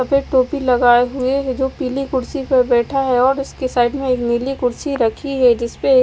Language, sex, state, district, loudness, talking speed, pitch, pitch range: Hindi, female, Odisha, Malkangiri, -17 LUFS, 240 wpm, 260 Hz, 245-275 Hz